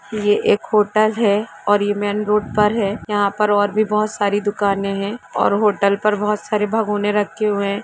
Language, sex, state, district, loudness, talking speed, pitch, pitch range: Hindi, female, Jharkhand, Jamtara, -18 LUFS, 200 wpm, 205 Hz, 205-210 Hz